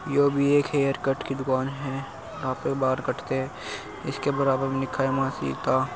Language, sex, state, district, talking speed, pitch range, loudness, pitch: Hindi, male, Uttar Pradesh, Muzaffarnagar, 210 wpm, 130-140 Hz, -26 LUFS, 135 Hz